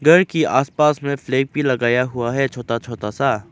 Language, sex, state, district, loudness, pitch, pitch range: Hindi, male, Arunachal Pradesh, Lower Dibang Valley, -19 LUFS, 130 Hz, 120-145 Hz